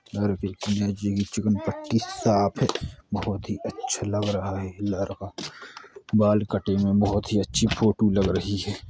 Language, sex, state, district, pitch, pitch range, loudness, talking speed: Hindi, male, Uttar Pradesh, Jalaun, 100 Hz, 100-105 Hz, -25 LUFS, 150 wpm